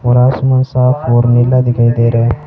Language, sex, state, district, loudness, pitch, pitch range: Hindi, male, Rajasthan, Bikaner, -11 LUFS, 125 Hz, 120-130 Hz